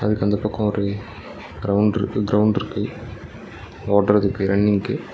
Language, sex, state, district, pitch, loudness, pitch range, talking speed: Tamil, male, Tamil Nadu, Nilgiris, 105 Hz, -21 LUFS, 100-105 Hz, 115 wpm